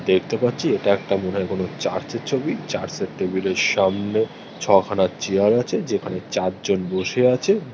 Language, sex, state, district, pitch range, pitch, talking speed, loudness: Bengali, male, West Bengal, North 24 Parganas, 95-110 Hz, 100 Hz, 165 wpm, -21 LUFS